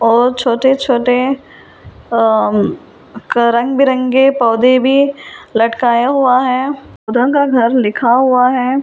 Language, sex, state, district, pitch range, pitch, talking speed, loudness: Hindi, female, Delhi, New Delhi, 235-265 Hz, 250 Hz, 110 wpm, -13 LUFS